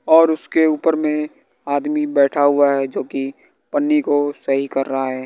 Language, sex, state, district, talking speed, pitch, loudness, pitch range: Hindi, male, Bihar, West Champaran, 180 wpm, 145 Hz, -18 LUFS, 135-155 Hz